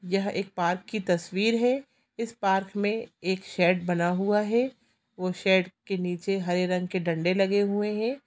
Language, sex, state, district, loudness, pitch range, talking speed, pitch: Hindi, female, Chhattisgarh, Sukma, -27 LUFS, 180-210 Hz, 180 wpm, 195 Hz